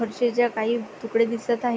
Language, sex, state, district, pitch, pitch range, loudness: Marathi, female, Maharashtra, Pune, 235 Hz, 230-240 Hz, -24 LUFS